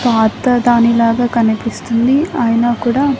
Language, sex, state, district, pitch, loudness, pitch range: Telugu, female, Andhra Pradesh, Annamaya, 240 Hz, -13 LUFS, 230-245 Hz